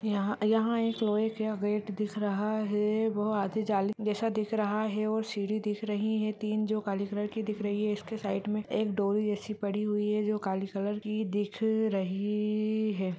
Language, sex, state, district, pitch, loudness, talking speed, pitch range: Hindi, female, Rajasthan, Churu, 210 Hz, -31 LUFS, 190 wpm, 205-215 Hz